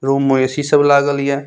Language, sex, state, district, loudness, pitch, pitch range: Maithili, male, Bihar, Saharsa, -14 LUFS, 140 Hz, 135-145 Hz